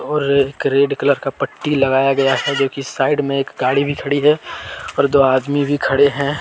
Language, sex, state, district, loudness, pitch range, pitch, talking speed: Hindi, male, Jharkhand, Deoghar, -16 LUFS, 135-145 Hz, 140 Hz, 215 wpm